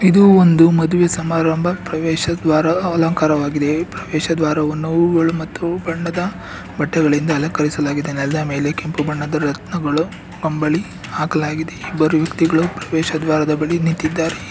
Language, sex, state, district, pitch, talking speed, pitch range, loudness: Kannada, male, Karnataka, Bangalore, 160 Hz, 115 wpm, 155-170 Hz, -17 LUFS